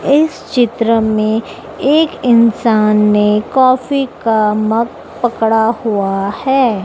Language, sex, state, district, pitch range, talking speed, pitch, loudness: Hindi, female, Madhya Pradesh, Dhar, 215-255 Hz, 105 wpm, 225 Hz, -13 LUFS